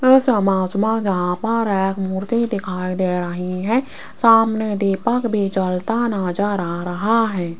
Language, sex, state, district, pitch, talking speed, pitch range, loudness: Hindi, female, Rajasthan, Jaipur, 200 Hz, 150 wpm, 185-225 Hz, -19 LUFS